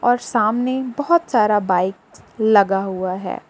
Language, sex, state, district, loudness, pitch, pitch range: Hindi, female, Jharkhand, Palamu, -18 LUFS, 215 Hz, 195-250 Hz